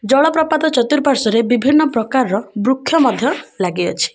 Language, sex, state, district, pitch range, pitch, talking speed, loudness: Odia, female, Odisha, Khordha, 220-295 Hz, 260 Hz, 145 wpm, -15 LUFS